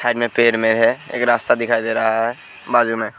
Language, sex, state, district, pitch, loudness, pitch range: Hindi, male, Uttar Pradesh, Hamirpur, 115 Hz, -17 LUFS, 115-120 Hz